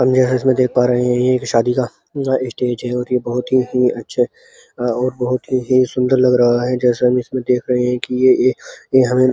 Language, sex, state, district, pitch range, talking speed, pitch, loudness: Hindi, male, Uttar Pradesh, Muzaffarnagar, 125-130 Hz, 225 wpm, 125 Hz, -16 LUFS